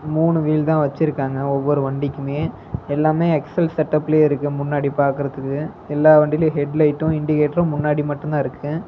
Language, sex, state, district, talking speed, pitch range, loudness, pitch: Tamil, male, Tamil Nadu, Namakkal, 135 wpm, 145-155 Hz, -19 LUFS, 150 Hz